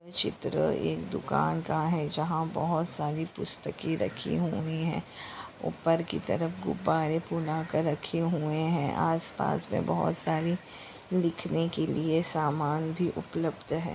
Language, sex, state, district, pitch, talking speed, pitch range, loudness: Hindi, female, Maharashtra, Chandrapur, 160 Hz, 140 wpm, 155-170 Hz, -30 LUFS